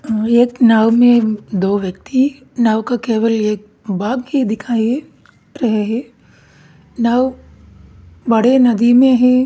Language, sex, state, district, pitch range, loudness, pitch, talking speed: Hindi, male, Uttarakhand, Tehri Garhwal, 210-250 Hz, -15 LUFS, 230 Hz, 100 wpm